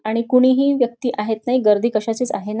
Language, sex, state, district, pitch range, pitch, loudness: Marathi, female, Maharashtra, Nagpur, 215-250 Hz, 230 Hz, -18 LUFS